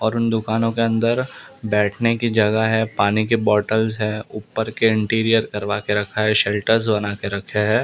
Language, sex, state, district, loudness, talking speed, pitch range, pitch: Hindi, male, Maharashtra, Mumbai Suburban, -19 LUFS, 190 wpm, 105-115 Hz, 110 Hz